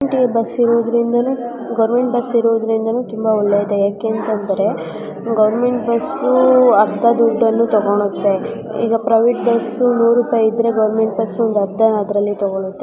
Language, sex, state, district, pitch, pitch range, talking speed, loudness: Kannada, male, Karnataka, Mysore, 225 Hz, 215-235 Hz, 105 wpm, -16 LUFS